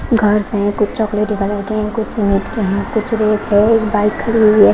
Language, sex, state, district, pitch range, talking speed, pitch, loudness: Hindi, female, Haryana, Rohtak, 205-220 Hz, 215 wpm, 210 Hz, -15 LUFS